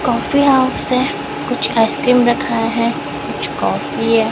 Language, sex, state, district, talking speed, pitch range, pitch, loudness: Hindi, female, Chhattisgarh, Raipur, 140 wpm, 230-265 Hz, 245 Hz, -16 LUFS